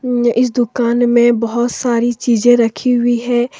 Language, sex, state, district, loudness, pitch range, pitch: Hindi, female, Jharkhand, Deoghar, -14 LUFS, 235-245 Hz, 240 Hz